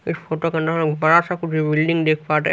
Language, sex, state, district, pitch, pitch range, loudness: Hindi, male, Haryana, Rohtak, 160 Hz, 155-165 Hz, -19 LUFS